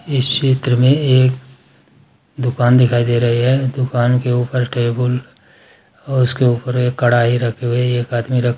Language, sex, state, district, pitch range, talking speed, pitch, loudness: Hindi, male, Uttar Pradesh, Ghazipur, 120-130 Hz, 170 wpm, 125 Hz, -16 LUFS